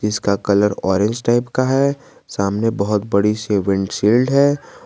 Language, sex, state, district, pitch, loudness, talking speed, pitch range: Hindi, male, Jharkhand, Garhwa, 105 Hz, -17 LUFS, 160 wpm, 100-120 Hz